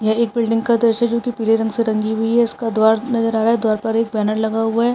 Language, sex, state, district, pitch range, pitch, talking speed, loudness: Hindi, male, Uttarakhand, Tehri Garhwal, 220-235 Hz, 225 Hz, 300 wpm, -17 LUFS